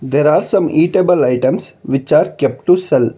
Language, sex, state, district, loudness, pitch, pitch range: English, male, Karnataka, Bangalore, -14 LUFS, 150 Hz, 135-180 Hz